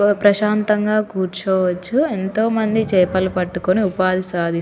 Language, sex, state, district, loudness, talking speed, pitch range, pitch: Telugu, female, Telangana, Nalgonda, -18 LUFS, 115 wpm, 185-210 Hz, 190 Hz